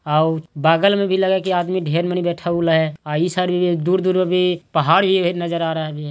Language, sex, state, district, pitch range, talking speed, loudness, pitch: Hindi, male, Bihar, Jahanabad, 160-185 Hz, 255 wpm, -18 LUFS, 175 Hz